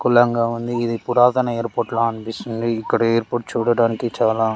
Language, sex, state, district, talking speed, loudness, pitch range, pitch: Telugu, male, Andhra Pradesh, Srikakulam, 145 wpm, -20 LUFS, 115-120 Hz, 115 Hz